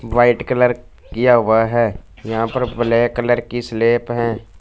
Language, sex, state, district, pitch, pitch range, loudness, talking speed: Hindi, male, Punjab, Fazilka, 120 Hz, 115-120 Hz, -17 LUFS, 155 wpm